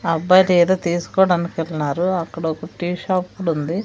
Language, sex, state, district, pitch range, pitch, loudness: Telugu, female, Andhra Pradesh, Sri Satya Sai, 165-185 Hz, 175 Hz, -19 LUFS